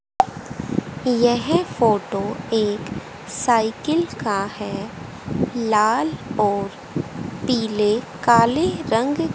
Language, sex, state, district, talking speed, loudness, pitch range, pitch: Hindi, female, Haryana, Jhajjar, 70 wpm, -21 LUFS, 210-255 Hz, 230 Hz